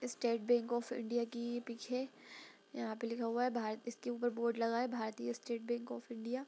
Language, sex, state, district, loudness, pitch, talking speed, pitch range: Hindi, female, Bihar, Gaya, -39 LUFS, 235 Hz, 220 wpm, 230-245 Hz